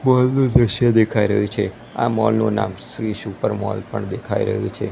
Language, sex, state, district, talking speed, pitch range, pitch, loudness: Gujarati, male, Gujarat, Gandhinagar, 205 wpm, 105-120 Hz, 110 Hz, -20 LUFS